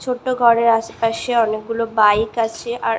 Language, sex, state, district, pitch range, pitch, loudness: Bengali, female, West Bengal, Malda, 225-235 Hz, 230 Hz, -18 LUFS